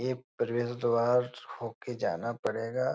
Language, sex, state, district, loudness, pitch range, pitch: Hindi, male, Bihar, Jahanabad, -32 LUFS, 120-125 Hz, 120 Hz